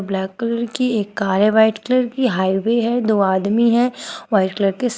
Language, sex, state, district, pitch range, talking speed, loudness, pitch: Hindi, female, Uttar Pradesh, Shamli, 195-240 Hz, 215 wpm, -18 LUFS, 220 Hz